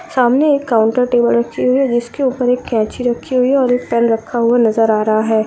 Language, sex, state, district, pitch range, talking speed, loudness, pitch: Hindi, female, Uttar Pradesh, Budaun, 225-255 Hz, 250 wpm, -14 LUFS, 240 Hz